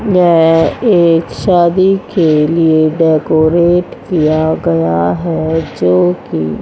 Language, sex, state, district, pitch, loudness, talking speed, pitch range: Hindi, female, Haryana, Rohtak, 160 Hz, -11 LUFS, 100 wpm, 150-170 Hz